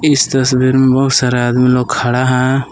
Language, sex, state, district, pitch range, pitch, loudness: Hindi, male, Jharkhand, Palamu, 125-130 Hz, 130 Hz, -12 LUFS